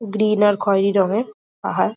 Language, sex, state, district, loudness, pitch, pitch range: Bengali, female, West Bengal, Jhargram, -18 LUFS, 210 Hz, 200-215 Hz